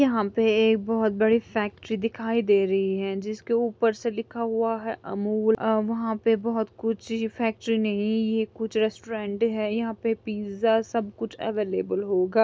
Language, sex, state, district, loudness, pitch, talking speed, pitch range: Hindi, female, Andhra Pradesh, Chittoor, -26 LUFS, 225 Hz, 170 wpm, 215-225 Hz